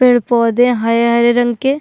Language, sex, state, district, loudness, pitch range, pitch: Hindi, female, Uttarakhand, Tehri Garhwal, -13 LUFS, 235-245 Hz, 240 Hz